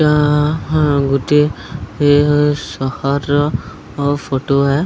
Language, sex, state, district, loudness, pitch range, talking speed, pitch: Odia, male, Odisha, Sambalpur, -15 LUFS, 135-150 Hz, 75 wpm, 145 Hz